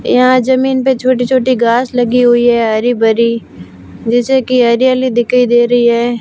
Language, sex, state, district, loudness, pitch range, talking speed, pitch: Hindi, female, Rajasthan, Barmer, -11 LUFS, 235-255 Hz, 175 wpm, 245 Hz